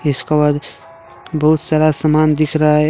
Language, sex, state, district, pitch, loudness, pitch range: Hindi, male, Jharkhand, Deoghar, 155 Hz, -14 LUFS, 150-155 Hz